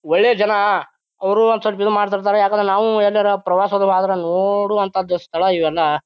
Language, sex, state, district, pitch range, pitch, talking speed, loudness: Kannada, male, Karnataka, Bijapur, 190-210 Hz, 200 Hz, 150 wpm, -17 LUFS